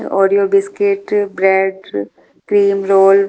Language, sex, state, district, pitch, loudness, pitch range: Hindi, female, Delhi, New Delhi, 195 Hz, -14 LUFS, 190-200 Hz